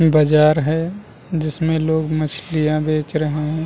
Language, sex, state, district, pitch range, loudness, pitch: Hindi, male, Uttar Pradesh, Muzaffarnagar, 150-160 Hz, -18 LUFS, 155 Hz